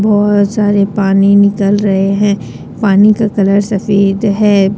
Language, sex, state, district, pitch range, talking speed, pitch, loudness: Hindi, female, Jharkhand, Deoghar, 200-205 Hz, 140 wpm, 200 Hz, -11 LUFS